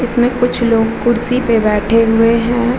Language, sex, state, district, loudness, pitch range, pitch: Hindi, female, Bihar, Vaishali, -13 LUFS, 225-245 Hz, 235 Hz